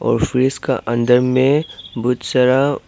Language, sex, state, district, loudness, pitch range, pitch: Hindi, male, Arunachal Pradesh, Papum Pare, -16 LUFS, 120-135 Hz, 125 Hz